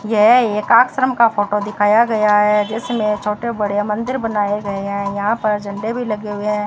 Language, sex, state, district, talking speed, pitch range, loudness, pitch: Hindi, female, Rajasthan, Bikaner, 195 wpm, 205-225 Hz, -17 LUFS, 210 Hz